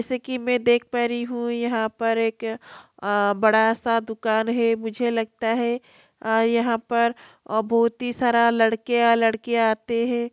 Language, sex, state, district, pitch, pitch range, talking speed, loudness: Hindi, female, Bihar, Kishanganj, 230 Hz, 225-240 Hz, 155 wpm, -22 LUFS